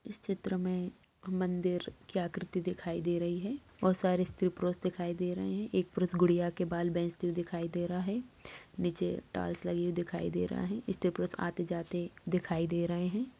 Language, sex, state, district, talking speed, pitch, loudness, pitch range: Hindi, female, Bihar, Lakhisarai, 200 wpm, 180 Hz, -35 LUFS, 175-185 Hz